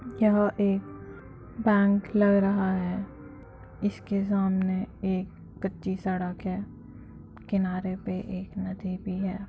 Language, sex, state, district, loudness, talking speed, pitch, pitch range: Hindi, female, Uttar Pradesh, Jyotiba Phule Nagar, -28 LUFS, 105 wpm, 195 Hz, 185-200 Hz